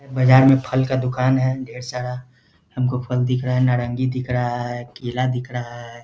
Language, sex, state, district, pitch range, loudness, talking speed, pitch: Hindi, male, Bihar, Jahanabad, 125-130 Hz, -20 LUFS, 230 wpm, 125 Hz